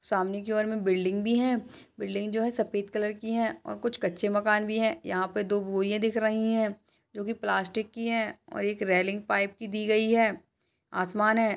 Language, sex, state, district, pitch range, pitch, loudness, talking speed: Hindi, female, Uttar Pradesh, Budaun, 200-225 Hz, 215 Hz, -28 LUFS, 225 wpm